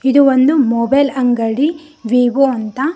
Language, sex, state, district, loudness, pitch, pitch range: Kannada, female, Karnataka, Koppal, -14 LUFS, 265 Hz, 245-285 Hz